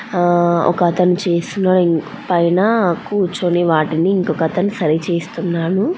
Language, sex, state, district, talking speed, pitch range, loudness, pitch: Telugu, female, Andhra Pradesh, Anantapur, 90 wpm, 170-190 Hz, -16 LUFS, 175 Hz